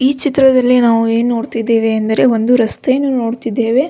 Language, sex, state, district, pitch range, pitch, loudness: Kannada, female, Karnataka, Belgaum, 230-260 Hz, 240 Hz, -13 LUFS